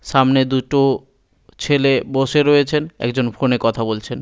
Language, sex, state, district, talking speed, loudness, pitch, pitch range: Bengali, male, West Bengal, Malda, 130 wpm, -17 LUFS, 135 Hz, 120-140 Hz